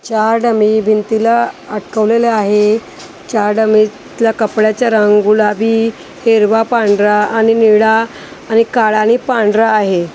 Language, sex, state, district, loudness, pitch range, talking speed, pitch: Marathi, female, Maharashtra, Gondia, -12 LUFS, 210-225 Hz, 110 wpm, 220 Hz